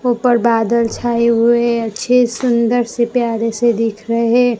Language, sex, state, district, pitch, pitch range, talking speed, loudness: Hindi, female, Gujarat, Gandhinagar, 235 Hz, 230-245 Hz, 155 wpm, -15 LUFS